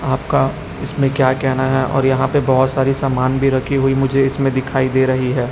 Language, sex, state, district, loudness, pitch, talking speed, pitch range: Hindi, male, Chhattisgarh, Raipur, -16 LUFS, 135 Hz, 215 wpm, 130-135 Hz